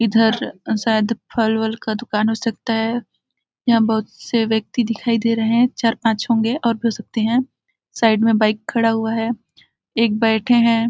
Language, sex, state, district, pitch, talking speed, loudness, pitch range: Hindi, female, Chhattisgarh, Balrampur, 225 Hz, 180 wpm, -19 LUFS, 220-230 Hz